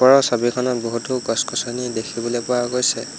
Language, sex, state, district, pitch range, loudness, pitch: Assamese, male, Assam, Hailakandi, 120-125 Hz, -20 LUFS, 120 Hz